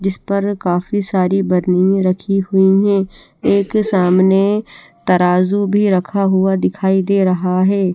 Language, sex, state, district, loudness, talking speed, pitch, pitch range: Hindi, female, Chandigarh, Chandigarh, -15 LUFS, 135 wpm, 190 Hz, 185-200 Hz